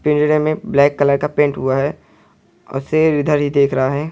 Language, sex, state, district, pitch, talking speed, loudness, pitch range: Hindi, male, Andhra Pradesh, Anantapur, 145 Hz, 220 wpm, -16 LUFS, 140-150 Hz